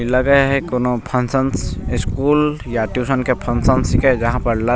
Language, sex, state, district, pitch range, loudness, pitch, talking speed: Maithili, male, Bihar, Begusarai, 120-135 Hz, -17 LUFS, 125 Hz, 190 wpm